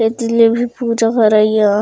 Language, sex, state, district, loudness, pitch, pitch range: Chhattisgarhi, female, Chhattisgarh, Raigarh, -13 LUFS, 225 Hz, 215-230 Hz